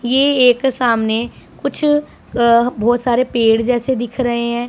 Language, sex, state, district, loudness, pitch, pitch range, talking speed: Hindi, female, Punjab, Pathankot, -15 LUFS, 240 Hz, 235-255 Hz, 155 wpm